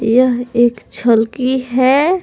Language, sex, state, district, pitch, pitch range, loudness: Hindi, male, Jharkhand, Palamu, 250 Hz, 235-260 Hz, -14 LUFS